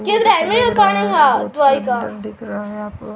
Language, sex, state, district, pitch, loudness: Hindi, female, Haryana, Rohtak, 245 Hz, -15 LUFS